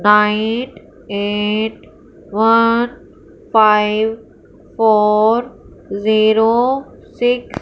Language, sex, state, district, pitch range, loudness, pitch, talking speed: Hindi, female, Punjab, Fazilka, 210-230 Hz, -15 LUFS, 220 Hz, 65 wpm